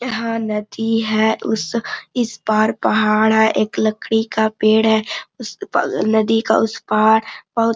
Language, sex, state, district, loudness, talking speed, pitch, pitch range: Hindi, female, Jharkhand, Sahebganj, -17 LUFS, 160 wpm, 220 Hz, 215-225 Hz